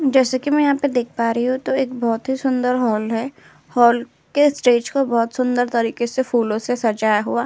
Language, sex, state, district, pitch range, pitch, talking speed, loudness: Hindi, female, Uttar Pradesh, Jyotiba Phule Nagar, 230-265 Hz, 245 Hz, 235 wpm, -19 LUFS